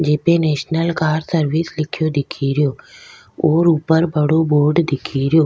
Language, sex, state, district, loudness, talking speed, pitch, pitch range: Rajasthani, female, Rajasthan, Nagaur, -17 LUFS, 120 wpm, 155 Hz, 150-165 Hz